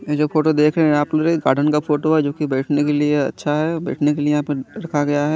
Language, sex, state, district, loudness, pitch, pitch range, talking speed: Hindi, male, Chandigarh, Chandigarh, -18 LUFS, 150 Hz, 145-155 Hz, 325 wpm